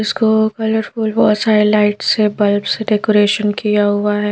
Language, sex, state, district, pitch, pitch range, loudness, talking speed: Hindi, female, Madhya Pradesh, Bhopal, 210 Hz, 205-220 Hz, -14 LUFS, 150 wpm